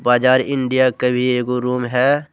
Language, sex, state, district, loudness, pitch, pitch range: Hindi, male, Jharkhand, Deoghar, -17 LUFS, 125 Hz, 125-130 Hz